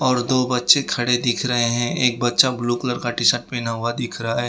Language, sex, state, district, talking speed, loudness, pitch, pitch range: Hindi, male, Gujarat, Valsad, 255 wpm, -19 LUFS, 120 Hz, 120-125 Hz